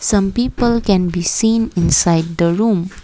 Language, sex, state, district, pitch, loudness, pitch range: English, female, Assam, Kamrup Metropolitan, 195 Hz, -15 LUFS, 170-225 Hz